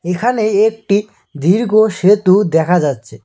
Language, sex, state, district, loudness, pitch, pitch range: Bengali, male, West Bengal, Cooch Behar, -13 LUFS, 195 Hz, 160-215 Hz